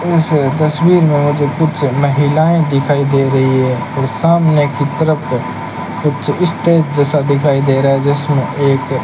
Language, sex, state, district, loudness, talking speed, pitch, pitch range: Hindi, male, Rajasthan, Bikaner, -13 LUFS, 160 wpm, 145 Hz, 135-155 Hz